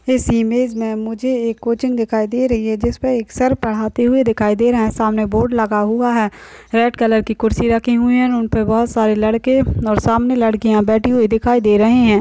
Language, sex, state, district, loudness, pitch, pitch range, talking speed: Hindi, female, West Bengal, Dakshin Dinajpur, -16 LUFS, 230 Hz, 220-245 Hz, 225 wpm